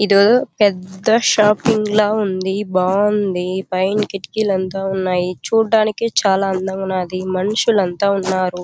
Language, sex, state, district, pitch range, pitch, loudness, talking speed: Telugu, female, Andhra Pradesh, Chittoor, 185-210 Hz, 195 Hz, -17 LUFS, 125 wpm